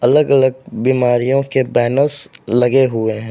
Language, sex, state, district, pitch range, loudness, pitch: Hindi, male, Uttar Pradesh, Jalaun, 120-135 Hz, -15 LUFS, 130 Hz